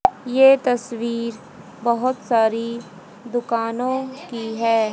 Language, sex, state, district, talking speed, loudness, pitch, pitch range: Hindi, female, Haryana, Jhajjar, 85 wpm, -21 LUFS, 235 Hz, 230-255 Hz